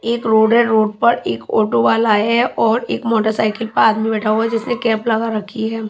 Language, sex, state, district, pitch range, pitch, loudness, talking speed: Hindi, female, Chhattisgarh, Raipur, 220-230 Hz, 225 Hz, -16 LUFS, 215 wpm